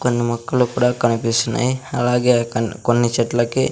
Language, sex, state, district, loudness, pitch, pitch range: Telugu, male, Andhra Pradesh, Sri Satya Sai, -18 LUFS, 120 Hz, 115-125 Hz